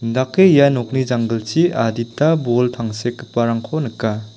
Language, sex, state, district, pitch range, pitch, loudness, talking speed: Garo, male, Meghalaya, South Garo Hills, 115-135 Hz, 120 Hz, -17 LUFS, 110 wpm